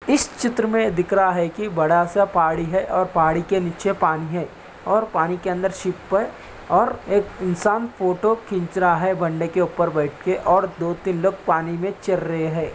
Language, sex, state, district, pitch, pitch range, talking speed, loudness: Hindi, male, Bihar, Samastipur, 185 Hz, 170-195 Hz, 210 wpm, -21 LUFS